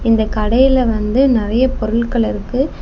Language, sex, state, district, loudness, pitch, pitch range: Tamil, female, Tamil Nadu, Kanyakumari, -15 LUFS, 235 Hz, 220-260 Hz